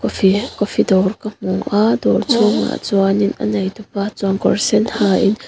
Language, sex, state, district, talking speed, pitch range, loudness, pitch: Mizo, female, Mizoram, Aizawl, 155 wpm, 195-215 Hz, -17 LUFS, 205 Hz